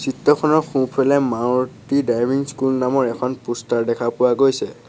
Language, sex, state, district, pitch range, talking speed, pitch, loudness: Assamese, male, Assam, Sonitpur, 120-135 Hz, 135 wpm, 130 Hz, -19 LUFS